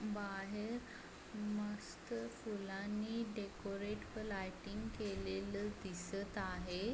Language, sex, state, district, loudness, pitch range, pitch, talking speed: Marathi, female, Maharashtra, Sindhudurg, -45 LUFS, 195-215 Hz, 205 Hz, 70 wpm